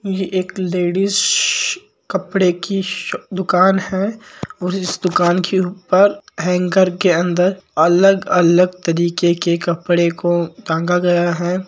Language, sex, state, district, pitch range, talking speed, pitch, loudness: Marwari, male, Rajasthan, Nagaur, 175-190 Hz, 130 wpm, 180 Hz, -16 LUFS